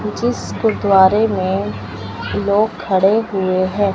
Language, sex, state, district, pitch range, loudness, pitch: Hindi, male, Chandigarh, Chandigarh, 185-210 Hz, -16 LUFS, 195 Hz